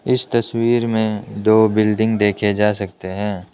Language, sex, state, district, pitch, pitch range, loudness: Hindi, male, Arunachal Pradesh, Lower Dibang Valley, 110 Hz, 105-115 Hz, -18 LUFS